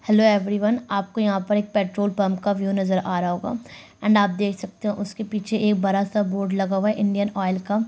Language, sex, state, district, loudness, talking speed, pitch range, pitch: Hindi, female, Bihar, Sitamarhi, -22 LUFS, 235 wpm, 195-210 Hz, 205 Hz